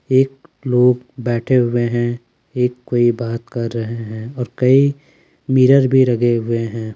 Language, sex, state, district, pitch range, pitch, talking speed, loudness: Hindi, male, Jharkhand, Ranchi, 115-130 Hz, 120 Hz, 155 wpm, -17 LUFS